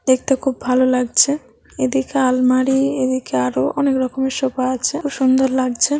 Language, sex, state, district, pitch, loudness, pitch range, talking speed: Bengali, female, West Bengal, North 24 Parganas, 260 Hz, -18 LUFS, 255-270 Hz, 140 wpm